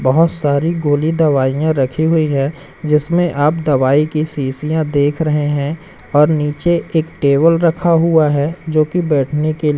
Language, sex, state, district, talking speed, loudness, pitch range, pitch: Hindi, male, Madhya Pradesh, Umaria, 160 wpm, -15 LUFS, 145-165 Hz, 155 Hz